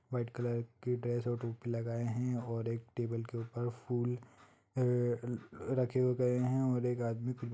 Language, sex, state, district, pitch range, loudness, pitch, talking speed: Hindi, male, Bihar, Gopalganj, 115-125 Hz, -36 LUFS, 120 Hz, 160 wpm